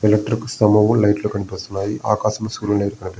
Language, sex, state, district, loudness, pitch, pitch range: Telugu, male, Andhra Pradesh, Visakhapatnam, -19 LUFS, 105 Hz, 100-110 Hz